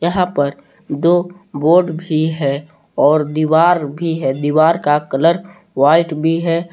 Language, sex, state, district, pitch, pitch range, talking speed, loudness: Hindi, male, Jharkhand, Palamu, 160 Hz, 150-170 Hz, 140 wpm, -15 LUFS